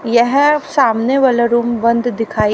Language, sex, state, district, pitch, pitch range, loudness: Hindi, female, Haryana, Rohtak, 235 Hz, 235-270 Hz, -14 LUFS